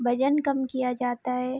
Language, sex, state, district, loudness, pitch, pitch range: Hindi, female, Bihar, Araria, -26 LUFS, 255 Hz, 250-265 Hz